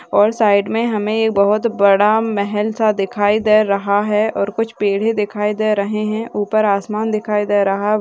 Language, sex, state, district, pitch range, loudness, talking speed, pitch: Hindi, female, Maharashtra, Pune, 205-215 Hz, -16 LUFS, 170 wpm, 210 Hz